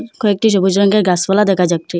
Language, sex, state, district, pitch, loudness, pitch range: Bengali, female, Assam, Hailakandi, 200 Hz, -14 LUFS, 180-210 Hz